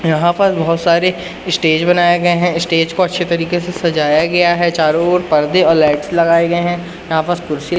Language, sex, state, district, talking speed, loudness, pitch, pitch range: Hindi, male, Madhya Pradesh, Umaria, 210 wpm, -14 LUFS, 170 Hz, 165-175 Hz